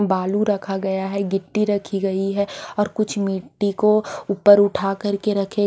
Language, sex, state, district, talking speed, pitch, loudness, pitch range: Hindi, female, Odisha, Khordha, 170 wpm, 200 Hz, -20 LUFS, 195-205 Hz